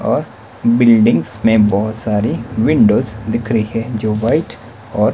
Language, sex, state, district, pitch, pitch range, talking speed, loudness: Hindi, male, Himachal Pradesh, Shimla, 110 Hz, 110-115 Hz, 140 wpm, -15 LUFS